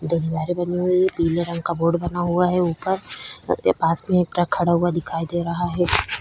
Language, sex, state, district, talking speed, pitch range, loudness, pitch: Hindi, female, Chhattisgarh, Korba, 220 wpm, 170-175 Hz, -21 LUFS, 175 Hz